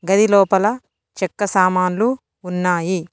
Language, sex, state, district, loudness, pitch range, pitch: Telugu, female, Telangana, Mahabubabad, -17 LUFS, 180-205 Hz, 185 Hz